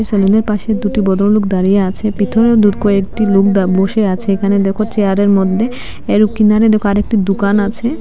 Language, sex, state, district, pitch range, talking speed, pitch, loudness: Bengali, female, Assam, Hailakandi, 195-215 Hz, 170 wpm, 205 Hz, -13 LUFS